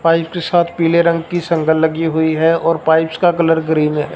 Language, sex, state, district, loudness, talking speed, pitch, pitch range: Hindi, male, Punjab, Fazilka, -15 LUFS, 230 wpm, 165 Hz, 160-170 Hz